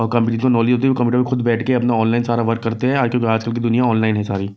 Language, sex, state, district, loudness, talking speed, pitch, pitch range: Hindi, male, Bihar, West Champaran, -17 LUFS, 250 wpm, 120 Hz, 115-125 Hz